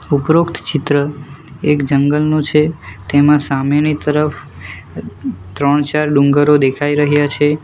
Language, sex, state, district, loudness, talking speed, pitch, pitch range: Gujarati, male, Gujarat, Valsad, -14 LUFS, 110 wpm, 145 Hz, 140-150 Hz